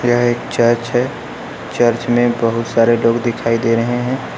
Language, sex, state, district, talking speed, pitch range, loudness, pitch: Hindi, male, Uttar Pradesh, Lucknow, 180 wpm, 115-120 Hz, -16 LUFS, 120 Hz